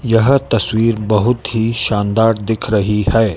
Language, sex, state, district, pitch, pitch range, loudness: Hindi, male, Madhya Pradesh, Dhar, 110 Hz, 105-115 Hz, -15 LUFS